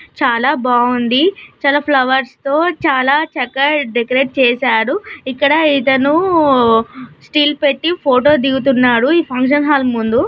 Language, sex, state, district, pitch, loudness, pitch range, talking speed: Telugu, female, Karnataka, Raichur, 275 Hz, -13 LUFS, 255-295 Hz, 110 wpm